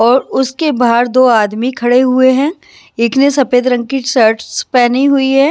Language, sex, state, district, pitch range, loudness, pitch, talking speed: Hindi, female, Maharashtra, Washim, 240-270 Hz, -12 LUFS, 255 Hz, 185 wpm